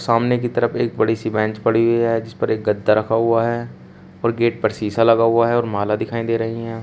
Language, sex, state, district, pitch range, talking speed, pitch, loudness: Hindi, male, Uttar Pradesh, Shamli, 110-115 Hz, 265 wpm, 115 Hz, -19 LUFS